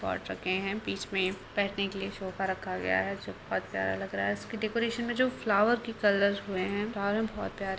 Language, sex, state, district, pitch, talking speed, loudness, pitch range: Hindi, female, Bihar, Purnia, 200 Hz, 240 wpm, -31 LUFS, 185-215 Hz